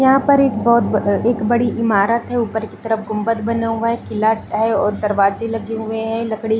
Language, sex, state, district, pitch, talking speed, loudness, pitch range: Hindi, female, Chhattisgarh, Balrampur, 225 Hz, 220 wpm, -18 LUFS, 215-230 Hz